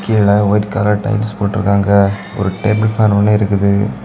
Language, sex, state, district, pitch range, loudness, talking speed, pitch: Tamil, male, Tamil Nadu, Kanyakumari, 100-105 Hz, -14 LUFS, 150 wpm, 105 Hz